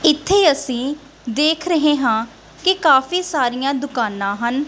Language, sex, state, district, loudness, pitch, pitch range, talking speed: Punjabi, female, Punjab, Kapurthala, -18 LUFS, 280 Hz, 250-315 Hz, 130 wpm